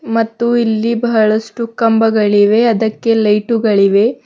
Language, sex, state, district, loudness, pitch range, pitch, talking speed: Kannada, female, Karnataka, Bidar, -13 LUFS, 215-235 Hz, 225 Hz, 100 wpm